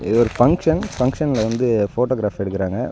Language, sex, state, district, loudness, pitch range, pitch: Tamil, male, Tamil Nadu, Nilgiris, -19 LUFS, 105-130 Hz, 120 Hz